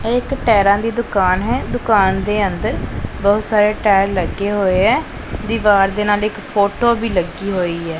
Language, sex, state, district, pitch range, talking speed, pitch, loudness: Punjabi, male, Punjab, Pathankot, 190-215 Hz, 180 wpm, 205 Hz, -16 LUFS